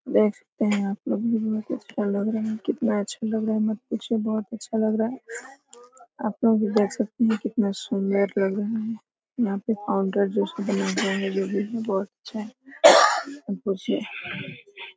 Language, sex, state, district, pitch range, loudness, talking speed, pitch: Hindi, female, Jharkhand, Sahebganj, 200-230 Hz, -25 LUFS, 130 wpm, 220 Hz